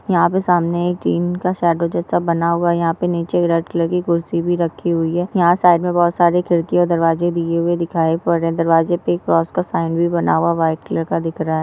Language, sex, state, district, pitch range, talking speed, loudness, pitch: Hindi, female, Maharashtra, Aurangabad, 165-175 Hz, 245 wpm, -17 LUFS, 170 Hz